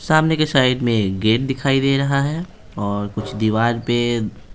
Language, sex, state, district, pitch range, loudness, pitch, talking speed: Hindi, male, Bihar, Patna, 110-140 Hz, -19 LUFS, 120 Hz, 160 wpm